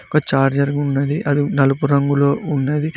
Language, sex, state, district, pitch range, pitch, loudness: Telugu, male, Telangana, Mahabubabad, 140-145 Hz, 140 Hz, -17 LUFS